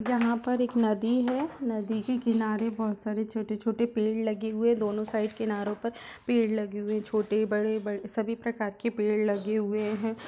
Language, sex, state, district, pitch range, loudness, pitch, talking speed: Hindi, female, Chhattisgarh, Raigarh, 215-235 Hz, -29 LUFS, 220 Hz, 195 wpm